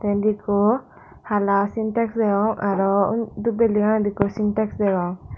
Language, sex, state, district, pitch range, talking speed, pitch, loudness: Chakma, female, Tripura, Dhalai, 200-220 Hz, 165 wpm, 210 Hz, -21 LUFS